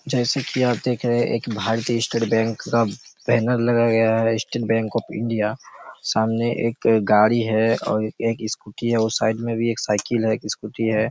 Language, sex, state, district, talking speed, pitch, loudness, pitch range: Hindi, male, Chhattisgarh, Raigarh, 180 wpm, 115 Hz, -21 LUFS, 110-120 Hz